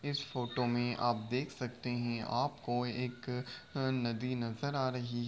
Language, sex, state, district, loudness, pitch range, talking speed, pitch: Hindi, male, Uttar Pradesh, Budaun, -36 LUFS, 120-130 Hz, 170 wpm, 125 Hz